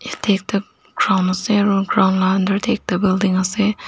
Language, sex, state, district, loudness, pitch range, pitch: Nagamese, female, Nagaland, Dimapur, -18 LUFS, 190-210 Hz, 195 Hz